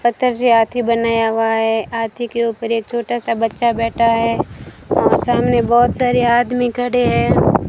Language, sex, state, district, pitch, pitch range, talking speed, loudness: Hindi, female, Rajasthan, Bikaner, 235 Hz, 230-240 Hz, 170 wpm, -16 LUFS